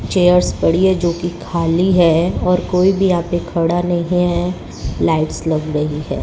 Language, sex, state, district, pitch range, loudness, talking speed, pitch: Hindi, male, Rajasthan, Bikaner, 165-180 Hz, -16 LUFS, 185 wpm, 175 Hz